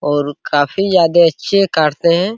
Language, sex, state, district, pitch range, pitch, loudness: Hindi, male, Bihar, Araria, 145-185 Hz, 165 Hz, -14 LUFS